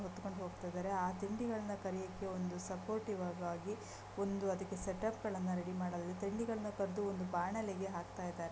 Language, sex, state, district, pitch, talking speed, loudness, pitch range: Kannada, female, Karnataka, Gulbarga, 190 Hz, 140 wpm, -42 LUFS, 180-205 Hz